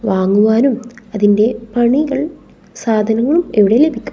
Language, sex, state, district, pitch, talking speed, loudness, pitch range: Malayalam, female, Kerala, Kasaragod, 230 Hz, 85 wpm, -14 LUFS, 215-270 Hz